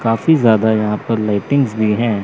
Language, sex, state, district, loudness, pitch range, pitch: Hindi, male, Chandigarh, Chandigarh, -15 LUFS, 105-120 Hz, 110 Hz